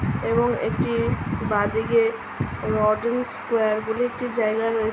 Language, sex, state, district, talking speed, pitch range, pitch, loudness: Bengali, female, West Bengal, Jhargram, 120 wpm, 220-235 Hz, 225 Hz, -23 LUFS